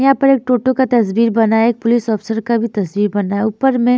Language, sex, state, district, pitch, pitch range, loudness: Hindi, female, Punjab, Fazilka, 230 Hz, 220-250 Hz, -15 LUFS